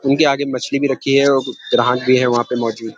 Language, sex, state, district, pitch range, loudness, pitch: Hindi, male, Uttarakhand, Uttarkashi, 120-140 Hz, -16 LUFS, 130 Hz